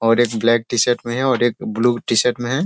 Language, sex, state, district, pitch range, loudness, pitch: Hindi, male, Bihar, Sitamarhi, 115-125 Hz, -18 LUFS, 120 Hz